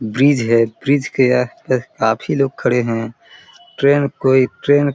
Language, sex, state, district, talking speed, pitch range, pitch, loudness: Hindi, male, Chhattisgarh, Korba, 160 wpm, 115-140 Hz, 130 Hz, -16 LUFS